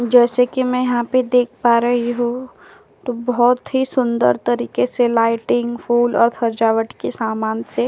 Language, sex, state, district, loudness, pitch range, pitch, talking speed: Hindi, female, Uttar Pradesh, Jyotiba Phule Nagar, -17 LUFS, 230-250 Hz, 240 Hz, 175 wpm